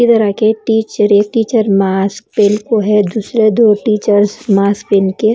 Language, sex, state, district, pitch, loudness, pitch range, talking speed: Hindi, female, Bihar, Patna, 210 Hz, -12 LUFS, 205-220 Hz, 170 wpm